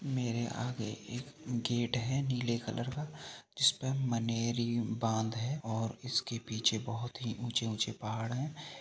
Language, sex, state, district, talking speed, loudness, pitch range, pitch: Hindi, male, Uttarakhand, Uttarkashi, 135 wpm, -35 LUFS, 115-125 Hz, 120 Hz